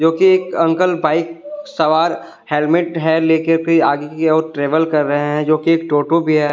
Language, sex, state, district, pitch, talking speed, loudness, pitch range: Hindi, male, Delhi, New Delhi, 160 Hz, 200 wpm, -15 LUFS, 150-165 Hz